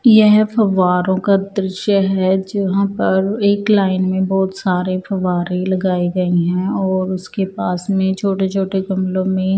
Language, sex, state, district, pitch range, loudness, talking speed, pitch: Hindi, male, Odisha, Nuapada, 185-195 Hz, -16 LUFS, 150 wpm, 190 Hz